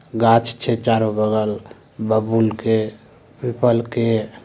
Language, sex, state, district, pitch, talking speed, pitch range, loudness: Maithili, male, Bihar, Samastipur, 115 Hz, 110 wpm, 110-115 Hz, -19 LUFS